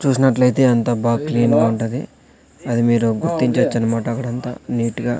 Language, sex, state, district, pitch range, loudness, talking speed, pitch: Telugu, male, Andhra Pradesh, Sri Satya Sai, 115-125 Hz, -18 LUFS, 150 wpm, 120 Hz